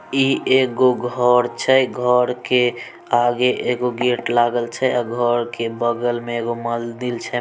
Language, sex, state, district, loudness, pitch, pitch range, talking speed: Maithili, male, Bihar, Samastipur, -19 LUFS, 120 Hz, 120-125 Hz, 145 wpm